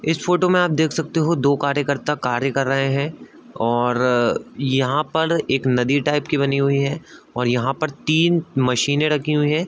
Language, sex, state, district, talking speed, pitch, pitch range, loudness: Hindi, male, Uttar Pradesh, Budaun, 200 wpm, 140 Hz, 135-155 Hz, -20 LUFS